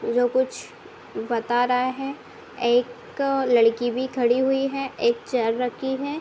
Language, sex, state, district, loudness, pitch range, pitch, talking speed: Hindi, female, Uttar Pradesh, Budaun, -23 LUFS, 240-265 Hz, 250 Hz, 155 wpm